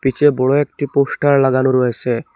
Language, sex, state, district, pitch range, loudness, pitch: Bengali, male, Assam, Hailakandi, 130-145 Hz, -15 LUFS, 135 Hz